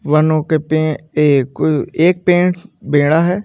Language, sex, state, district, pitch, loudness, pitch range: Hindi, male, Maharashtra, Mumbai Suburban, 155 Hz, -14 LUFS, 150-175 Hz